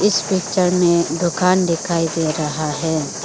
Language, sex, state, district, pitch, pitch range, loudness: Hindi, female, Arunachal Pradesh, Lower Dibang Valley, 170 Hz, 160-180 Hz, -18 LUFS